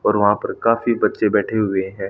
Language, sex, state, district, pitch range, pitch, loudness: Hindi, male, Haryana, Rohtak, 100-115 Hz, 105 Hz, -19 LUFS